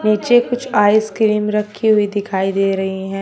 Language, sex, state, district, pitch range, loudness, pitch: Hindi, female, Uttar Pradesh, Shamli, 195-220 Hz, -16 LUFS, 210 Hz